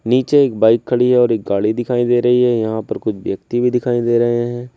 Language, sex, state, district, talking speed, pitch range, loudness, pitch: Hindi, male, Uttar Pradesh, Saharanpur, 265 wpm, 115-125 Hz, -16 LUFS, 120 Hz